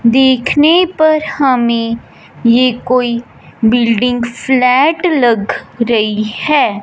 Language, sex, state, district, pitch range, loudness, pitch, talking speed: Hindi, male, Punjab, Fazilka, 235-275 Hz, -12 LUFS, 245 Hz, 90 wpm